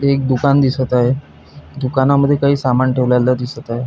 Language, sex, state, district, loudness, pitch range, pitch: Marathi, male, Maharashtra, Pune, -15 LUFS, 125-140 Hz, 130 Hz